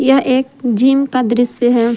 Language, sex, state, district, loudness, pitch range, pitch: Hindi, female, Jharkhand, Palamu, -14 LUFS, 240-265 Hz, 255 Hz